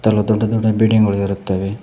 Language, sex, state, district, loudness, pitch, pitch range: Kannada, male, Karnataka, Koppal, -16 LUFS, 110 Hz, 100-110 Hz